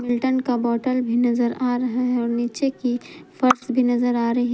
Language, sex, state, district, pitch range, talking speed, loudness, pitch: Hindi, female, Jharkhand, Palamu, 240-250 Hz, 210 wpm, -21 LUFS, 245 Hz